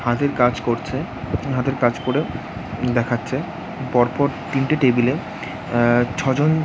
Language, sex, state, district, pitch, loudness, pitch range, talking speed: Bengali, male, West Bengal, Jhargram, 125 Hz, -21 LUFS, 120-140 Hz, 125 wpm